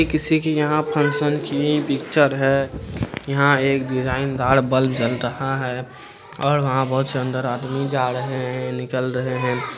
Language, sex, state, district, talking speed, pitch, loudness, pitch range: Hindi, male, Bihar, Araria, 160 wpm, 135 Hz, -21 LUFS, 130-145 Hz